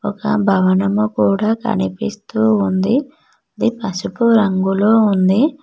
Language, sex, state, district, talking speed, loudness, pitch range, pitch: Telugu, female, Telangana, Mahabubabad, 95 wpm, -16 LUFS, 190-230 Hz, 210 Hz